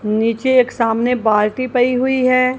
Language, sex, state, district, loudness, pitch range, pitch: Hindi, female, Punjab, Kapurthala, -16 LUFS, 225-255 Hz, 250 Hz